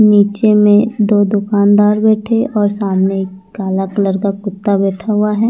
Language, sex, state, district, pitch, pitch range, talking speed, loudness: Hindi, female, Chandigarh, Chandigarh, 205 Hz, 200-210 Hz, 175 wpm, -13 LUFS